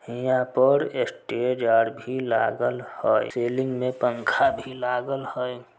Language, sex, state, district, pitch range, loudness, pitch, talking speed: Maithili, male, Bihar, Samastipur, 120-130 Hz, -24 LUFS, 125 Hz, 135 wpm